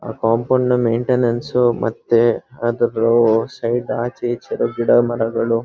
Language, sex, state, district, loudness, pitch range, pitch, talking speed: Kannada, male, Karnataka, Mysore, -18 LUFS, 115-120 Hz, 120 Hz, 115 wpm